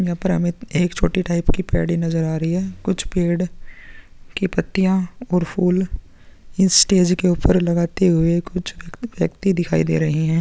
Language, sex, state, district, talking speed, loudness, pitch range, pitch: Hindi, male, Bihar, Vaishali, 165 wpm, -19 LUFS, 170-190 Hz, 180 Hz